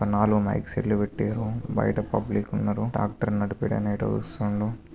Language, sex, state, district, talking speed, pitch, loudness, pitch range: Telugu, male, Telangana, Karimnagar, 145 wpm, 105 Hz, -27 LUFS, 105-110 Hz